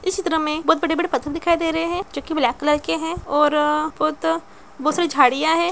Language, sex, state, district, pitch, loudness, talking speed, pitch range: Hindi, female, Bihar, Begusarai, 315 Hz, -20 LUFS, 230 wpm, 300-335 Hz